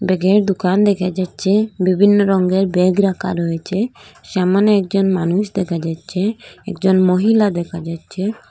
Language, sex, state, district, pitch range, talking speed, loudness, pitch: Bengali, female, Assam, Hailakandi, 180-200 Hz, 125 wpm, -17 LUFS, 190 Hz